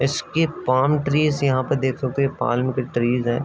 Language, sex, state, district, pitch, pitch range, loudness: Hindi, male, Uttar Pradesh, Ghazipur, 130 Hz, 125-145 Hz, -21 LUFS